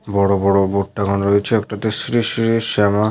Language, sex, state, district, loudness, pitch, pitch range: Bengali, male, West Bengal, Malda, -17 LUFS, 105 Hz, 100-115 Hz